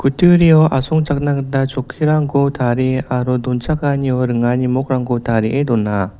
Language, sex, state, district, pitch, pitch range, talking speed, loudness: Garo, male, Meghalaya, West Garo Hills, 130 Hz, 125-145 Hz, 115 wpm, -16 LUFS